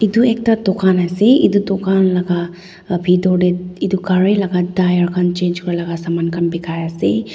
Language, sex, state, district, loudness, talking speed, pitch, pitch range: Nagamese, female, Nagaland, Dimapur, -16 LUFS, 170 wpm, 180 Hz, 175-190 Hz